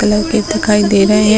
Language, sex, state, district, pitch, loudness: Hindi, female, Bihar, Muzaffarpur, 205 Hz, -12 LUFS